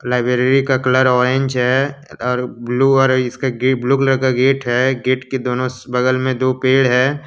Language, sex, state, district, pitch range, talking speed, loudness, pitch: Hindi, male, Jharkhand, Deoghar, 125-135 Hz, 205 wpm, -16 LUFS, 130 Hz